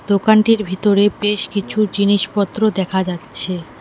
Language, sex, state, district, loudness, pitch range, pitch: Bengali, female, West Bengal, Alipurduar, -17 LUFS, 190-210 Hz, 200 Hz